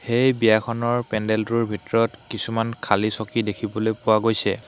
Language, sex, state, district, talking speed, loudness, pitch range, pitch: Assamese, male, Assam, Hailakandi, 130 wpm, -22 LUFS, 110-115 Hz, 110 Hz